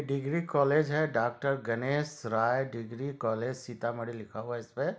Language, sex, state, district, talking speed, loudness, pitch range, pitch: Hindi, male, Bihar, Sitamarhi, 155 wpm, -31 LUFS, 115-140 Hz, 125 Hz